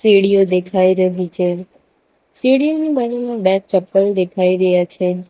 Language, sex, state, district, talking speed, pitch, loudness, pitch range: Gujarati, female, Gujarat, Valsad, 125 wpm, 190 Hz, -16 LUFS, 180-210 Hz